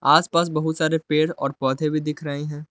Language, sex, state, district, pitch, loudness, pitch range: Hindi, male, Jharkhand, Palamu, 155 Hz, -22 LUFS, 150-160 Hz